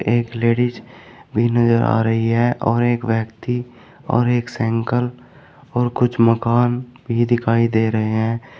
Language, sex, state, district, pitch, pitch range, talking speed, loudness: Hindi, male, Uttar Pradesh, Shamli, 120 Hz, 115-120 Hz, 145 wpm, -19 LUFS